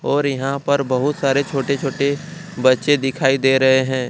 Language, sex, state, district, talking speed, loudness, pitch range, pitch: Hindi, male, Jharkhand, Deoghar, 175 wpm, -18 LUFS, 135-140 Hz, 135 Hz